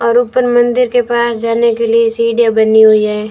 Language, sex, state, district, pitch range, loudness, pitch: Hindi, female, Rajasthan, Jaisalmer, 225-240 Hz, -11 LUFS, 230 Hz